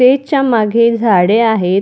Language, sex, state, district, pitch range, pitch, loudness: Marathi, female, Maharashtra, Dhule, 215-250 Hz, 230 Hz, -12 LUFS